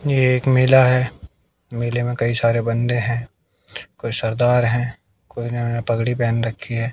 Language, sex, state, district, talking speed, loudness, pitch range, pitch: Hindi, male, Haryana, Jhajjar, 155 wpm, -19 LUFS, 115-125 Hz, 120 Hz